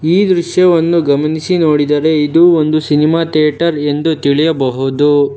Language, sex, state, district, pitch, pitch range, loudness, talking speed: Kannada, male, Karnataka, Bangalore, 155 Hz, 145-165 Hz, -12 LUFS, 100 wpm